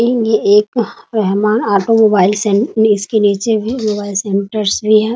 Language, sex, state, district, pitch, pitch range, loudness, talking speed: Hindi, female, Bihar, Muzaffarpur, 215 Hz, 205-225 Hz, -13 LUFS, 140 wpm